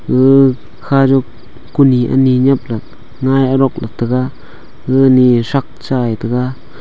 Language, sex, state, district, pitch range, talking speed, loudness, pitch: Wancho, male, Arunachal Pradesh, Longding, 120-135 Hz, 130 wpm, -13 LUFS, 130 Hz